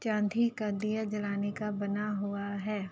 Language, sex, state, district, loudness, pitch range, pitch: Hindi, female, Uttar Pradesh, Ghazipur, -33 LUFS, 200-215 Hz, 210 Hz